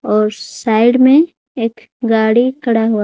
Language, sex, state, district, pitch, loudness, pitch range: Hindi, female, Odisha, Khordha, 230 Hz, -14 LUFS, 220-255 Hz